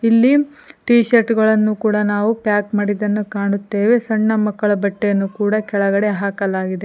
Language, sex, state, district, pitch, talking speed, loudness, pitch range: Kannada, female, Karnataka, Koppal, 210 Hz, 130 wpm, -17 LUFS, 200-225 Hz